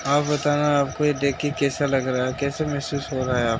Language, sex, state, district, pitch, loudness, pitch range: Hindi, male, Uttar Pradesh, Hamirpur, 140 Hz, -23 LUFS, 135-145 Hz